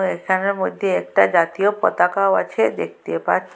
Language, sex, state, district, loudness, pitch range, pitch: Bengali, female, Assam, Hailakandi, -19 LUFS, 180-195 Hz, 190 Hz